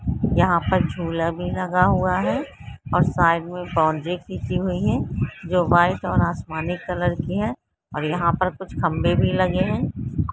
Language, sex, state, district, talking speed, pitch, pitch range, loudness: Hindi, female, Karnataka, Mysore, 175 wpm, 175 Hz, 165-180 Hz, -22 LUFS